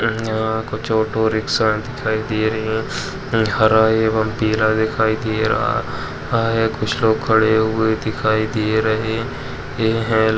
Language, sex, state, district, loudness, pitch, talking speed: Hindi, male, Uttar Pradesh, Jalaun, -19 LUFS, 110 Hz, 135 wpm